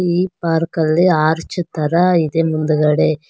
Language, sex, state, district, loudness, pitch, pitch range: Kannada, female, Karnataka, Bangalore, -16 LUFS, 165 Hz, 155-175 Hz